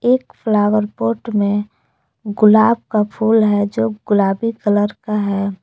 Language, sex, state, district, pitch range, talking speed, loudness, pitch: Hindi, female, Jharkhand, Palamu, 205-225 Hz, 140 wpm, -16 LUFS, 210 Hz